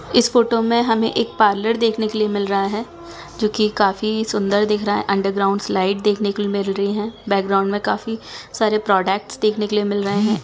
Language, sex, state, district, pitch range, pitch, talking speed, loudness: Hindi, female, Bihar, Gaya, 200-220 Hz, 210 Hz, 205 wpm, -19 LUFS